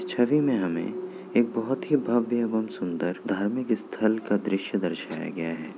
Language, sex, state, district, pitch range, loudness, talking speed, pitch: Hindi, male, Bihar, Kishanganj, 105-135 Hz, -27 LUFS, 175 wpm, 115 Hz